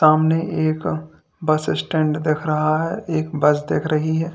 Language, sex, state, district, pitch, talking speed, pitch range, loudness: Hindi, male, Uttar Pradesh, Lalitpur, 155 Hz, 165 wpm, 150-160 Hz, -20 LUFS